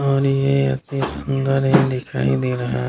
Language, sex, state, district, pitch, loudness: Hindi, male, Bihar, Kishanganj, 135 Hz, -19 LUFS